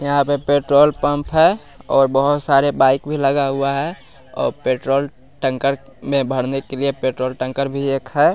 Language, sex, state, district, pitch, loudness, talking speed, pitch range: Hindi, male, Bihar, West Champaran, 140 Hz, -18 LUFS, 180 wpm, 135-145 Hz